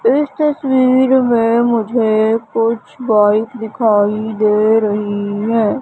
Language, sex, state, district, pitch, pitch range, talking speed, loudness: Hindi, female, Madhya Pradesh, Katni, 225 Hz, 215-255 Hz, 105 wpm, -14 LUFS